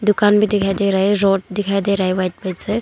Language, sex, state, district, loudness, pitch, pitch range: Hindi, female, Arunachal Pradesh, Longding, -17 LUFS, 200 Hz, 195-205 Hz